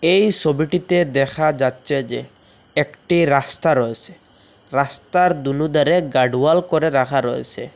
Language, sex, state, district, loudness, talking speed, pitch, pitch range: Bengali, male, Assam, Hailakandi, -18 LUFS, 115 wpm, 145 Hz, 135-170 Hz